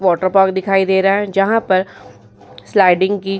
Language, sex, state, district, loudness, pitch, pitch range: Hindi, female, Bihar, Vaishali, -15 LUFS, 190 Hz, 180-195 Hz